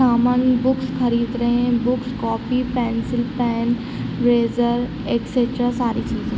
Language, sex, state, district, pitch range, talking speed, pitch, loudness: Hindi, female, Jharkhand, Sahebganj, 235-245 Hz, 130 wpm, 240 Hz, -20 LUFS